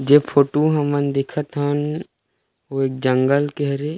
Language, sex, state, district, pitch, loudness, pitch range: Chhattisgarhi, male, Chhattisgarh, Rajnandgaon, 145 Hz, -20 LUFS, 135-145 Hz